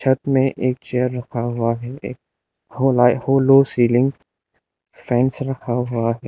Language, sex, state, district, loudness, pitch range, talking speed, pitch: Hindi, male, Arunachal Pradesh, Lower Dibang Valley, -19 LUFS, 120-135 Hz, 145 wpm, 125 Hz